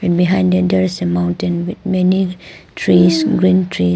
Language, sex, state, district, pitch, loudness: English, female, Arunachal Pradesh, Papum Pare, 175 Hz, -15 LUFS